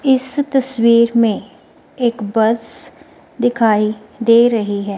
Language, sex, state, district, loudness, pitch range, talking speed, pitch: Hindi, female, Himachal Pradesh, Shimla, -15 LUFS, 220-260 Hz, 110 wpm, 235 Hz